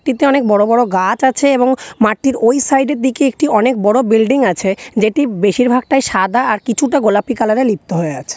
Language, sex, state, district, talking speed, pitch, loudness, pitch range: Bengali, female, West Bengal, North 24 Parganas, 200 wpm, 245 Hz, -13 LUFS, 215-270 Hz